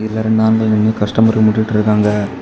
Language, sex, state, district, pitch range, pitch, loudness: Tamil, male, Tamil Nadu, Kanyakumari, 105-110 Hz, 110 Hz, -14 LUFS